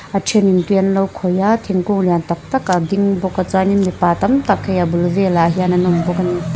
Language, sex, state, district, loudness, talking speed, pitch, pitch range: Mizo, female, Mizoram, Aizawl, -16 LUFS, 265 wpm, 190 Hz, 175-195 Hz